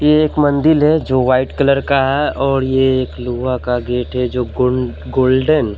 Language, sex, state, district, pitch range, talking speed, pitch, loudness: Hindi, male, Bihar, Katihar, 125-145 Hz, 205 wpm, 130 Hz, -15 LUFS